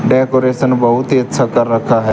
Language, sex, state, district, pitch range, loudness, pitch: Hindi, male, Haryana, Charkhi Dadri, 120-130 Hz, -13 LUFS, 125 Hz